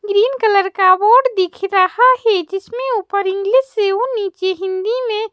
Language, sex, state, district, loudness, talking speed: Hindi, female, Madhya Pradesh, Bhopal, -15 LUFS, 170 wpm